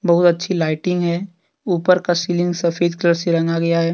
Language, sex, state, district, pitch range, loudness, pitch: Hindi, male, Jharkhand, Deoghar, 170-180 Hz, -18 LUFS, 175 Hz